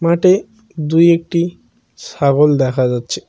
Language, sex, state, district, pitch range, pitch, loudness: Bengali, male, West Bengal, Cooch Behar, 135-170 Hz, 165 Hz, -14 LUFS